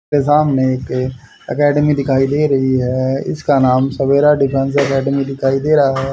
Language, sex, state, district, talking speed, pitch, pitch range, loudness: Hindi, male, Haryana, Jhajjar, 155 wpm, 135 Hz, 130-145 Hz, -15 LUFS